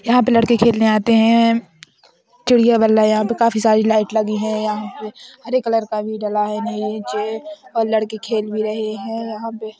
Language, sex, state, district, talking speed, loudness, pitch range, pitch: Hindi, female, Uttar Pradesh, Hamirpur, 200 wpm, -17 LUFS, 215-230 Hz, 220 Hz